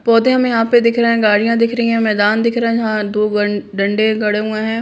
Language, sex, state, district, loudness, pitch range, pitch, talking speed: Hindi, female, Bihar, Madhepura, -15 LUFS, 210-230 Hz, 220 Hz, 275 wpm